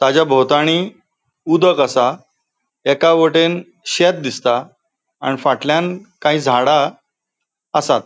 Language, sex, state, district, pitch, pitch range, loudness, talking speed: Konkani, male, Goa, North and South Goa, 160 Hz, 135-175 Hz, -16 LUFS, 95 wpm